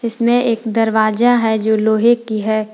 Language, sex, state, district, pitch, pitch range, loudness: Hindi, female, Jharkhand, Palamu, 225 Hz, 220-235 Hz, -15 LUFS